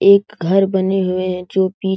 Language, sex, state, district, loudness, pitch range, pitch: Hindi, male, Bihar, Jahanabad, -17 LUFS, 185-195 Hz, 190 Hz